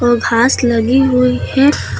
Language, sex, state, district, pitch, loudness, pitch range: Hindi, female, Uttar Pradesh, Lucknow, 250 Hz, -13 LUFS, 240-265 Hz